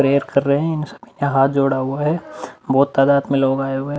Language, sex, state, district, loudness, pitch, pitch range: Hindi, male, Uttar Pradesh, Muzaffarnagar, -18 LUFS, 140 Hz, 135-140 Hz